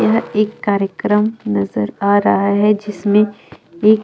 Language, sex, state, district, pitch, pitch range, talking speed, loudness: Hindi, female, Chhattisgarh, Jashpur, 205 Hz, 195-215 Hz, 135 wpm, -16 LUFS